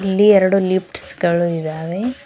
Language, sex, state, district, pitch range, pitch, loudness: Kannada, female, Karnataka, Koppal, 170-195 Hz, 185 Hz, -17 LUFS